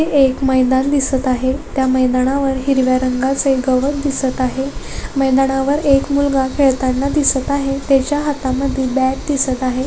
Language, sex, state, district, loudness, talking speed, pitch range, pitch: Marathi, female, Maharashtra, Sindhudurg, -16 LUFS, 140 wpm, 260-275 Hz, 270 Hz